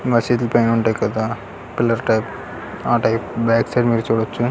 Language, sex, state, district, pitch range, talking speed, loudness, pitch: Telugu, male, Andhra Pradesh, Krishna, 115-120 Hz, 185 wpm, -19 LUFS, 115 Hz